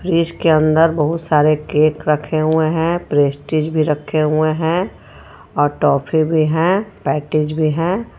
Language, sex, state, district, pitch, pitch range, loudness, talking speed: Hindi, female, Jharkhand, Ranchi, 155 Hz, 150-165 Hz, -16 LUFS, 155 wpm